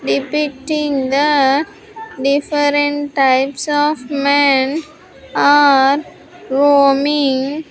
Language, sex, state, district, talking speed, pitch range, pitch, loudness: English, female, Andhra Pradesh, Sri Satya Sai, 60 wpm, 275-295 Hz, 285 Hz, -15 LUFS